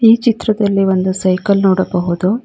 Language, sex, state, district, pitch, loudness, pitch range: Kannada, female, Karnataka, Bangalore, 195 Hz, -14 LUFS, 185-215 Hz